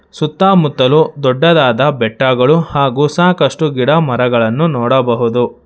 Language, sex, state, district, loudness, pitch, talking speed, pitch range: Kannada, male, Karnataka, Bangalore, -12 LUFS, 140 Hz, 85 wpm, 125-160 Hz